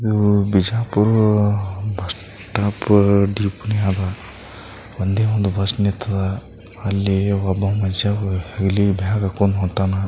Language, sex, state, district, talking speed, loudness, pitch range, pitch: Kannada, male, Karnataka, Bijapur, 95 wpm, -19 LUFS, 95-105 Hz, 100 Hz